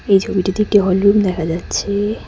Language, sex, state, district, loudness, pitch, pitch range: Bengali, female, West Bengal, Cooch Behar, -16 LUFS, 200 Hz, 185-205 Hz